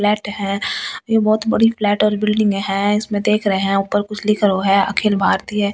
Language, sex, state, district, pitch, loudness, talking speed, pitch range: Hindi, female, Delhi, New Delhi, 210 Hz, -17 LUFS, 220 wpm, 200-215 Hz